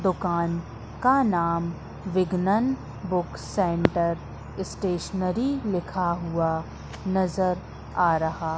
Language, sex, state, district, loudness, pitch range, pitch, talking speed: Hindi, female, Madhya Pradesh, Katni, -26 LUFS, 170-190 Hz, 180 Hz, 85 wpm